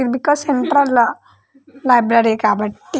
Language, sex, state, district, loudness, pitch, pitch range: Telugu, female, Andhra Pradesh, Krishna, -16 LUFS, 255 Hz, 230-285 Hz